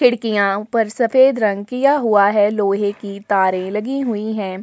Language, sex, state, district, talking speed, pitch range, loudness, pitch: Hindi, female, Uttarakhand, Tehri Garhwal, 170 wpm, 200-235 Hz, -17 LUFS, 210 Hz